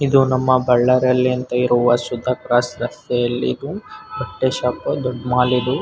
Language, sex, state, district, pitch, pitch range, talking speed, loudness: Kannada, male, Karnataka, Bellary, 125 Hz, 120-130 Hz, 145 wpm, -18 LUFS